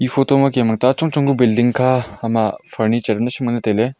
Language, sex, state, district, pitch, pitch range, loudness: Wancho, male, Arunachal Pradesh, Longding, 120 Hz, 115-130 Hz, -17 LUFS